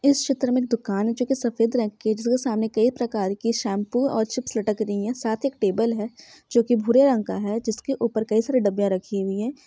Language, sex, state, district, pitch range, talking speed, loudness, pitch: Hindi, female, Bihar, Saran, 215-250 Hz, 255 wpm, -23 LUFS, 230 Hz